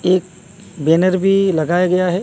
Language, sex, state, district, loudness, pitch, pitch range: Hindi, male, Odisha, Malkangiri, -16 LUFS, 185 Hz, 175-185 Hz